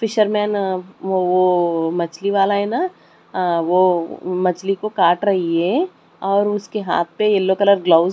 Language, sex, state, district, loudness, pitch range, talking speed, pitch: Hindi, male, Delhi, New Delhi, -18 LUFS, 180-205 Hz, 155 wpm, 190 Hz